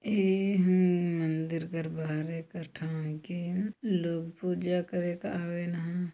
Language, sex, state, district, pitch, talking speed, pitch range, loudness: Hindi, female, Chhattisgarh, Jashpur, 175 Hz, 135 wpm, 165-180 Hz, -31 LUFS